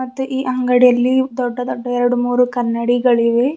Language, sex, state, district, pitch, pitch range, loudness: Kannada, female, Karnataka, Bidar, 245 Hz, 245-255 Hz, -16 LUFS